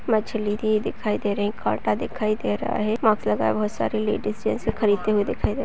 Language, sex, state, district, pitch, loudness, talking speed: Hindi, female, West Bengal, Dakshin Dinajpur, 205 Hz, -24 LUFS, 200 wpm